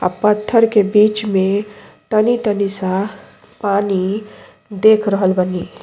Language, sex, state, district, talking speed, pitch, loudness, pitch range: Bhojpuri, female, Uttar Pradesh, Deoria, 115 wpm, 205 Hz, -16 LUFS, 195-215 Hz